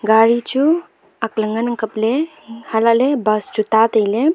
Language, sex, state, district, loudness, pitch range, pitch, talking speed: Wancho, female, Arunachal Pradesh, Longding, -17 LUFS, 220-260 Hz, 225 Hz, 140 wpm